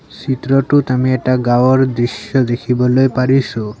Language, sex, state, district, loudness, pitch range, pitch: Assamese, male, Assam, Sonitpur, -14 LUFS, 120-130 Hz, 130 Hz